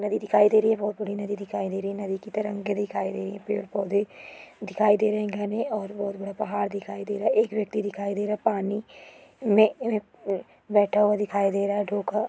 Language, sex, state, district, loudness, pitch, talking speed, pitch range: Hindi, female, Andhra Pradesh, Chittoor, -26 LUFS, 205 Hz, 200 wpm, 200-210 Hz